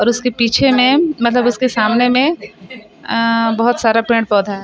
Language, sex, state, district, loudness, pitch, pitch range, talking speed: Chhattisgarhi, female, Chhattisgarh, Sarguja, -14 LUFS, 235 Hz, 225-250 Hz, 155 wpm